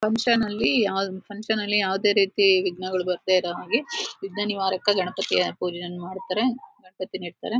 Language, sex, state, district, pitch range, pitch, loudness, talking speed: Kannada, female, Karnataka, Shimoga, 185-215 Hz, 195 Hz, -24 LUFS, 135 wpm